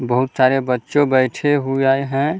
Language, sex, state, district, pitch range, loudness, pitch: Hindi, male, Bihar, Vaishali, 130-140 Hz, -17 LUFS, 135 Hz